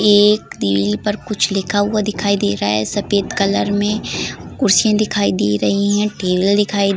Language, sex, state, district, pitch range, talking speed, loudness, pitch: Hindi, female, Uttar Pradesh, Varanasi, 185-210 Hz, 170 wpm, -17 LUFS, 205 Hz